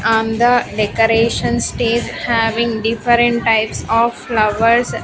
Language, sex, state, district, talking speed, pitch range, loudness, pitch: English, female, Andhra Pradesh, Sri Satya Sai, 105 wpm, 225-235 Hz, -15 LUFS, 230 Hz